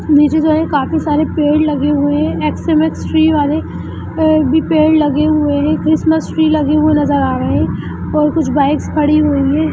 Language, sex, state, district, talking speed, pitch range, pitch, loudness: Hindi, female, Bihar, Lakhisarai, 190 wpm, 290-310 Hz, 300 Hz, -13 LUFS